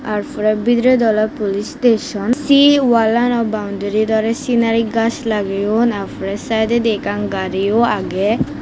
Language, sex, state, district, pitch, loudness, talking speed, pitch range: Chakma, female, Tripura, West Tripura, 225 Hz, -16 LUFS, 155 wpm, 210-235 Hz